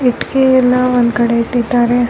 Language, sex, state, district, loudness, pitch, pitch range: Kannada, female, Karnataka, Bellary, -13 LUFS, 245 Hz, 240-250 Hz